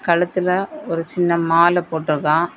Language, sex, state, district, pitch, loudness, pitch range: Tamil, female, Tamil Nadu, Kanyakumari, 170 Hz, -18 LUFS, 165-180 Hz